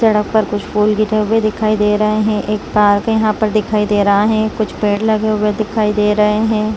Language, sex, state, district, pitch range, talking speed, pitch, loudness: Hindi, female, Chhattisgarh, Rajnandgaon, 210-215 Hz, 240 wpm, 215 Hz, -15 LUFS